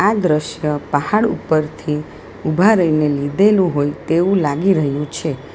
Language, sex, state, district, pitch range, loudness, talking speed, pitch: Gujarati, female, Gujarat, Valsad, 145-185 Hz, -17 LUFS, 120 wpm, 155 Hz